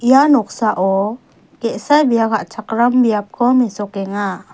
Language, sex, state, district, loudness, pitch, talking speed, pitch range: Garo, female, Meghalaya, West Garo Hills, -16 LUFS, 225 Hz, 90 wpm, 205-245 Hz